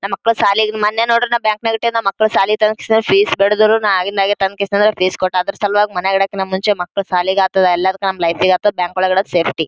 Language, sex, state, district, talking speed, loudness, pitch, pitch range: Kannada, female, Karnataka, Gulbarga, 235 wpm, -15 LUFS, 200 Hz, 185-215 Hz